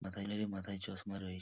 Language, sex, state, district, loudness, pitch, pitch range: Bengali, male, West Bengal, Purulia, -42 LUFS, 100 Hz, 95-100 Hz